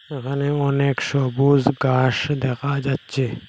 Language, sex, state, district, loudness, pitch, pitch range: Bengali, male, Assam, Hailakandi, -21 LUFS, 140 Hz, 130-140 Hz